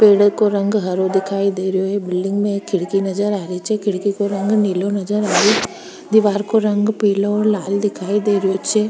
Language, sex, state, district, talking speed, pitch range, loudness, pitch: Rajasthani, female, Rajasthan, Churu, 220 wpm, 195-210 Hz, -18 LUFS, 200 Hz